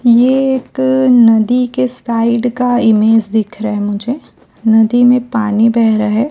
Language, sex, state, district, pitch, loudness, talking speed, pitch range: Hindi, female, Chhattisgarh, Raipur, 235 Hz, -12 LUFS, 150 wpm, 220-250 Hz